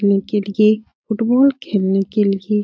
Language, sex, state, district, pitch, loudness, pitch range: Hindi, female, Uttar Pradesh, Etah, 210 Hz, -17 LUFS, 200-220 Hz